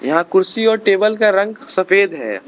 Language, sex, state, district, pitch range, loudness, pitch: Hindi, male, Arunachal Pradesh, Lower Dibang Valley, 200-225 Hz, -15 LUFS, 215 Hz